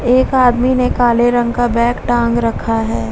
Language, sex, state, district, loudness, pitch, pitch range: Hindi, female, Bihar, Vaishali, -14 LUFS, 240 Hz, 235-245 Hz